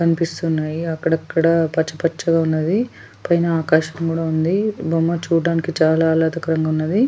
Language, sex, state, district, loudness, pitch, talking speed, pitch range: Telugu, female, Telangana, Nalgonda, -19 LUFS, 165 Hz, 110 wpm, 160-170 Hz